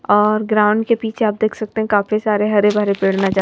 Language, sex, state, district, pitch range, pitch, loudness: Hindi, female, Madhya Pradesh, Bhopal, 205-220 Hz, 210 Hz, -16 LUFS